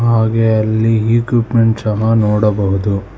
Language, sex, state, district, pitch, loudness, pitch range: Kannada, male, Karnataka, Bangalore, 110 Hz, -14 LUFS, 105-115 Hz